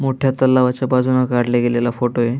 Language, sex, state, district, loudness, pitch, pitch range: Marathi, male, Maharashtra, Aurangabad, -17 LUFS, 125 Hz, 120-130 Hz